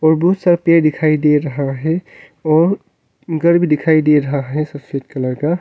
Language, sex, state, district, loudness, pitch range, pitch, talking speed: Hindi, male, Arunachal Pradesh, Longding, -16 LUFS, 145-165 Hz, 155 Hz, 180 wpm